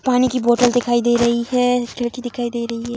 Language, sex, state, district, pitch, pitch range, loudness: Hindi, female, Bihar, Darbhanga, 240 Hz, 240-245 Hz, -18 LUFS